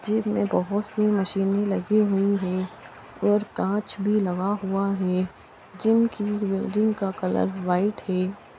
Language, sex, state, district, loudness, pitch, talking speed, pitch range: Hindi, female, Bihar, East Champaran, -24 LUFS, 200 Hz, 145 wpm, 190-210 Hz